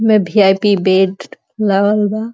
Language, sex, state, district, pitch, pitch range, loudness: Bhojpuri, female, Uttar Pradesh, Deoria, 205 Hz, 195-215 Hz, -13 LUFS